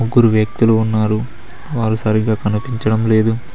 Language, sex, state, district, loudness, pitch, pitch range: Telugu, male, Telangana, Mahabubabad, -16 LUFS, 110 Hz, 110-115 Hz